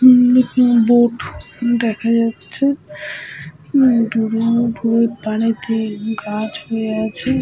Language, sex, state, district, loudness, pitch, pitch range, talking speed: Bengali, female, Jharkhand, Sahebganj, -16 LUFS, 230 Hz, 225-245 Hz, 80 wpm